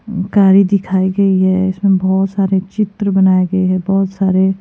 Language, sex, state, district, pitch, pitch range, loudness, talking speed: Hindi, female, Himachal Pradesh, Shimla, 190 Hz, 185-195 Hz, -13 LUFS, 180 wpm